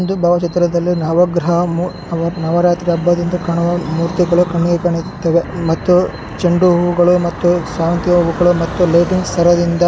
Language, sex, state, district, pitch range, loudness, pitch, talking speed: Kannada, male, Karnataka, Shimoga, 170-175 Hz, -15 LUFS, 175 Hz, 110 wpm